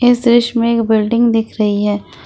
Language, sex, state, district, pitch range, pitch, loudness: Hindi, female, Jharkhand, Ranchi, 215-235 Hz, 230 Hz, -14 LUFS